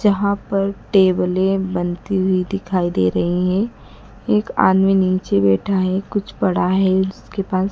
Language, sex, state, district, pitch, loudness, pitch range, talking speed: Hindi, female, Madhya Pradesh, Dhar, 190 Hz, -18 LUFS, 180-195 Hz, 150 wpm